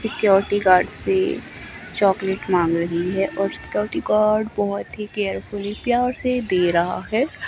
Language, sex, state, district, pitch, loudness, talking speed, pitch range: Hindi, female, Himachal Pradesh, Shimla, 200 Hz, -21 LUFS, 145 wpm, 185-220 Hz